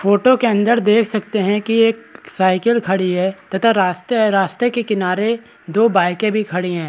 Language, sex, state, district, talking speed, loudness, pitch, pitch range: Hindi, male, Bihar, Supaul, 200 wpm, -16 LUFS, 210 Hz, 185-230 Hz